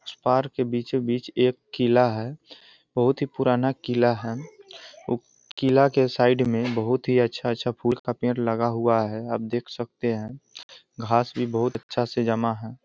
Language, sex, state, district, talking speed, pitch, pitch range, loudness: Hindi, male, Bihar, East Champaran, 175 wpm, 120 Hz, 115-130 Hz, -24 LUFS